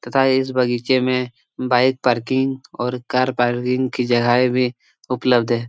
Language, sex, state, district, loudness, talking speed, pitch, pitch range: Hindi, male, Jharkhand, Jamtara, -19 LUFS, 145 wpm, 125 Hz, 120-130 Hz